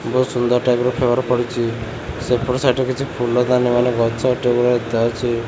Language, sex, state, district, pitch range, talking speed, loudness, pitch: Odia, male, Odisha, Khordha, 120-125 Hz, 175 wpm, -18 LUFS, 125 Hz